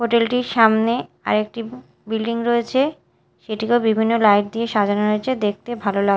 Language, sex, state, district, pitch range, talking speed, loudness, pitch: Bengali, female, Odisha, Malkangiri, 215-235 Hz, 145 wpm, -19 LUFS, 225 Hz